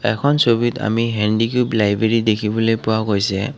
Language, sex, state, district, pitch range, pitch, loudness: Assamese, male, Assam, Kamrup Metropolitan, 105-120 Hz, 115 Hz, -18 LUFS